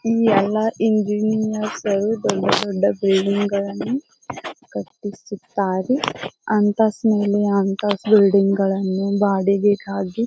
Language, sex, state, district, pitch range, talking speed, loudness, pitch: Kannada, female, Karnataka, Bijapur, 200-215 Hz, 75 wpm, -19 LUFS, 205 Hz